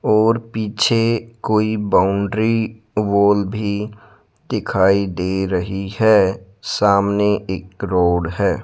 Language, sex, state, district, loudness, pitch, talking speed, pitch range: Hindi, male, Rajasthan, Jaipur, -18 LUFS, 105 Hz, 95 wpm, 95-110 Hz